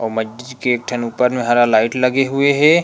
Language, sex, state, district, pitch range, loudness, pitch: Chhattisgarhi, male, Chhattisgarh, Rajnandgaon, 120-135 Hz, -16 LUFS, 125 Hz